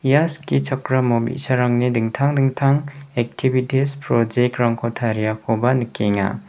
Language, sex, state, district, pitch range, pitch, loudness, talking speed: Garo, male, Meghalaya, West Garo Hills, 115-135 Hz, 125 Hz, -20 LUFS, 85 wpm